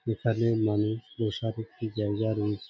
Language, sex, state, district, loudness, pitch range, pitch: Bengali, male, West Bengal, Jhargram, -29 LUFS, 105-115 Hz, 110 Hz